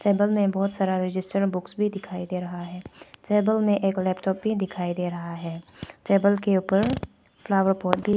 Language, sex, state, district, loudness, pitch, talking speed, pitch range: Hindi, female, Arunachal Pradesh, Papum Pare, -25 LUFS, 195 Hz, 190 wpm, 180-200 Hz